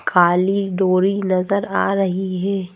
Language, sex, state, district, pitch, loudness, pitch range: Hindi, female, Madhya Pradesh, Bhopal, 190 Hz, -18 LUFS, 185-195 Hz